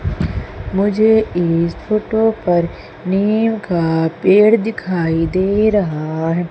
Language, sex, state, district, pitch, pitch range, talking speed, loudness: Hindi, female, Madhya Pradesh, Umaria, 190 Hz, 170-215 Hz, 100 wpm, -16 LUFS